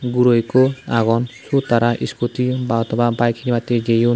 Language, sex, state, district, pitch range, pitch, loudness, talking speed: Chakma, male, Tripura, West Tripura, 115-125 Hz, 120 Hz, -18 LUFS, 160 wpm